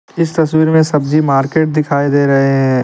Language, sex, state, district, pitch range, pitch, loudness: Hindi, male, Jharkhand, Deoghar, 135-160 Hz, 150 Hz, -13 LUFS